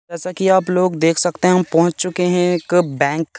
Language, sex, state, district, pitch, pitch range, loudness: Hindi, male, Madhya Pradesh, Katni, 180 Hz, 165-180 Hz, -16 LUFS